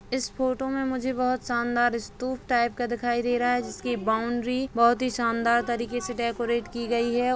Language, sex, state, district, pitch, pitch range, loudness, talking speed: Hindi, female, Bihar, Begusarai, 240 Hz, 235-255 Hz, -26 LUFS, 195 wpm